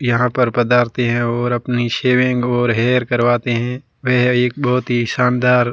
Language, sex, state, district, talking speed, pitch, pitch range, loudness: Hindi, male, Rajasthan, Barmer, 165 wpm, 125 Hz, 120-125 Hz, -16 LUFS